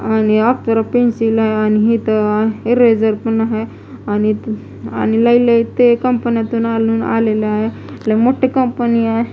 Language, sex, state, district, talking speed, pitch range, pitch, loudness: Marathi, female, Maharashtra, Mumbai Suburban, 140 wpm, 215-235 Hz, 225 Hz, -15 LUFS